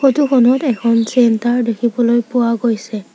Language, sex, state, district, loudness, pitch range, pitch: Assamese, female, Assam, Sonitpur, -15 LUFS, 230-250 Hz, 240 Hz